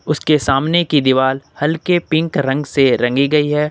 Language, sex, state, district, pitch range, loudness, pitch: Hindi, male, Uttar Pradesh, Lucknow, 135-155 Hz, -15 LUFS, 150 Hz